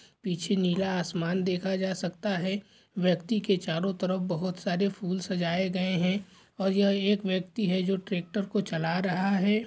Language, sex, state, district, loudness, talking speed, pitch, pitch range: Hindi, male, Uttar Pradesh, Ghazipur, -29 LUFS, 180 wpm, 190 Hz, 180-200 Hz